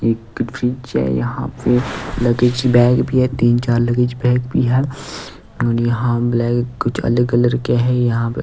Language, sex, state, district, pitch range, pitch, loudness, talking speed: Hindi, male, Delhi, New Delhi, 120-125 Hz, 120 Hz, -17 LUFS, 185 wpm